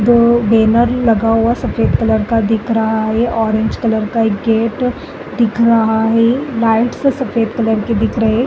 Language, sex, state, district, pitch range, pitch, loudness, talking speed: Hindi, female, Uttar Pradesh, Jalaun, 220-235 Hz, 225 Hz, -14 LUFS, 165 wpm